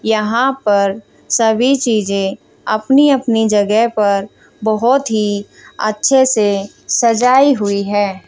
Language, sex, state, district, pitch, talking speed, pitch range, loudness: Hindi, female, Haryana, Jhajjar, 220 Hz, 110 wpm, 205-250 Hz, -14 LUFS